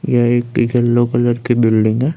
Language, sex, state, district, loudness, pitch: Hindi, male, Chandigarh, Chandigarh, -15 LUFS, 120 Hz